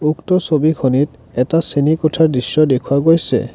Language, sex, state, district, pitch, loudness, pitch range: Assamese, male, Assam, Kamrup Metropolitan, 155 Hz, -15 LUFS, 140-160 Hz